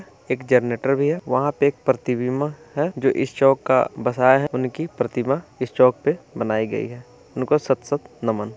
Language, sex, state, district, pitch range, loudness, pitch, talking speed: Hindi, male, Bihar, East Champaran, 125-145 Hz, -21 LUFS, 130 Hz, 195 wpm